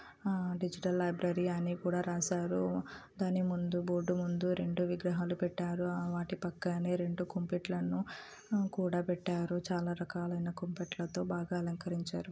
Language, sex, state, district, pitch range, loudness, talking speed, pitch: Telugu, female, Andhra Pradesh, Anantapur, 175-180 Hz, -36 LUFS, 120 wpm, 175 Hz